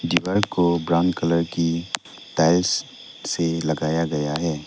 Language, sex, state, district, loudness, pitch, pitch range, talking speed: Hindi, male, Arunachal Pradesh, Lower Dibang Valley, -22 LUFS, 85 Hz, 80-85 Hz, 130 wpm